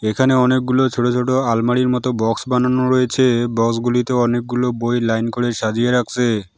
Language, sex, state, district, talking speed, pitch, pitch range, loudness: Bengali, male, West Bengal, Alipurduar, 155 wpm, 120 Hz, 115-125 Hz, -17 LUFS